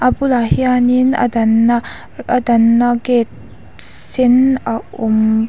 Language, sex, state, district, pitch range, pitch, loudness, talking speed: Mizo, female, Mizoram, Aizawl, 230-250 Hz, 240 Hz, -14 LUFS, 120 wpm